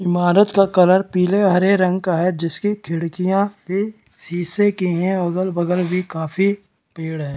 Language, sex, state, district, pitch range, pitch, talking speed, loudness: Hindi, male, Bihar, Kishanganj, 175-195 Hz, 185 Hz, 165 wpm, -18 LUFS